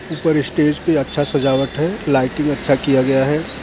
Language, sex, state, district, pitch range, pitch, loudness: Hindi, male, Maharashtra, Mumbai Suburban, 135-155 Hz, 145 Hz, -17 LUFS